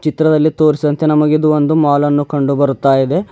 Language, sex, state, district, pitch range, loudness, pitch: Kannada, male, Karnataka, Bidar, 145-155 Hz, -13 LUFS, 150 Hz